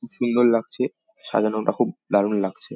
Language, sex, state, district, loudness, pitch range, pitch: Bengali, male, West Bengal, Paschim Medinipur, -22 LUFS, 105-120 Hz, 110 Hz